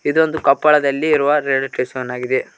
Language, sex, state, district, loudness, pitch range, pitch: Kannada, male, Karnataka, Koppal, -17 LUFS, 130-150 Hz, 140 Hz